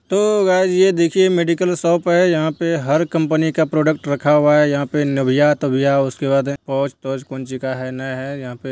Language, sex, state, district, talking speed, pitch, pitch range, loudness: Hindi, male, Bihar, Purnia, 185 wpm, 150 Hz, 135-170 Hz, -17 LUFS